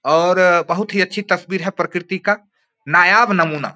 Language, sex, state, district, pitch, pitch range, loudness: Hindi, male, Bihar, Samastipur, 180 Hz, 170-200 Hz, -16 LUFS